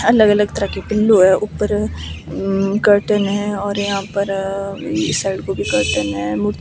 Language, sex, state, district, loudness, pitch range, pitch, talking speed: Hindi, female, Himachal Pradesh, Shimla, -17 LUFS, 185-210 Hz, 200 Hz, 155 wpm